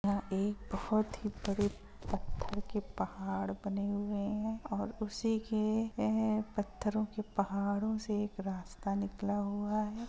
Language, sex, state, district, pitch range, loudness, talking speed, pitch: Hindi, female, Bihar, Gopalganj, 200-215 Hz, -36 LUFS, 135 wpm, 205 Hz